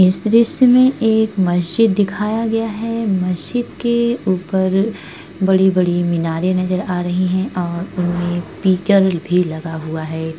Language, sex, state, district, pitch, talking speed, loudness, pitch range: Hindi, female, Uttar Pradesh, Etah, 185 Hz, 135 wpm, -17 LUFS, 175-220 Hz